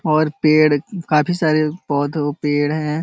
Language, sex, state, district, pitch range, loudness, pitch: Hindi, male, Bihar, Jahanabad, 150-155 Hz, -18 LUFS, 155 Hz